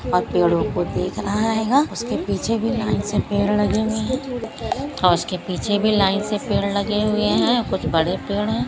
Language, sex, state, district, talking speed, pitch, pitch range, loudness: Hindi, female, Maharashtra, Pune, 200 wpm, 210 Hz, 200-225 Hz, -21 LUFS